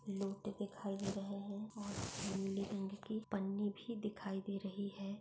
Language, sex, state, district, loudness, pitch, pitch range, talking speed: Hindi, female, Maharashtra, Pune, -43 LUFS, 200 Hz, 195-205 Hz, 170 wpm